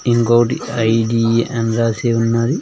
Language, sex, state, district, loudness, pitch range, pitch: Telugu, male, Andhra Pradesh, Sri Satya Sai, -16 LUFS, 115-120 Hz, 115 Hz